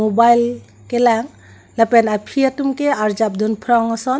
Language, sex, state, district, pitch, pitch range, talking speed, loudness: Karbi, female, Assam, Karbi Anglong, 235 Hz, 220-255 Hz, 145 wpm, -16 LUFS